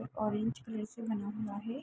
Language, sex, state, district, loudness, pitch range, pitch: Hindi, female, Jharkhand, Sahebganj, -37 LUFS, 215-225 Hz, 215 Hz